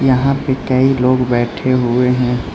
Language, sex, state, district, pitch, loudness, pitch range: Hindi, male, Arunachal Pradesh, Lower Dibang Valley, 125 Hz, -15 LUFS, 125-130 Hz